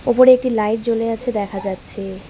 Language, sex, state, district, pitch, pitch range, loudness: Bengali, female, West Bengal, Cooch Behar, 225 Hz, 195-245 Hz, -18 LUFS